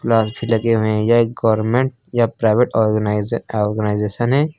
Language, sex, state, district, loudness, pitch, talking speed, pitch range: Hindi, male, Uttar Pradesh, Lucknow, -18 LUFS, 115 Hz, 170 wpm, 110-120 Hz